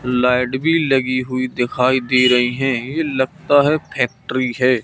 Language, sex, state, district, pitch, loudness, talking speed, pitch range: Hindi, male, Madhya Pradesh, Katni, 130 Hz, -17 LUFS, 160 wpm, 125-135 Hz